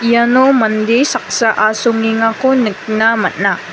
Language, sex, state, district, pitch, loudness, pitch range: Garo, female, Meghalaya, West Garo Hills, 225 Hz, -13 LUFS, 215-240 Hz